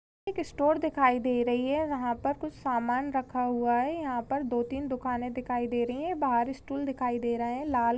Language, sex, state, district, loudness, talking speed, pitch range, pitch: Hindi, female, Chhattisgarh, Kabirdham, -30 LUFS, 220 wpm, 240-280 Hz, 255 Hz